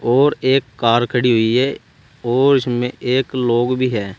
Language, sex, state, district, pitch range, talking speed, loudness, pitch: Hindi, male, Uttar Pradesh, Saharanpur, 120-130 Hz, 170 wpm, -17 LUFS, 125 Hz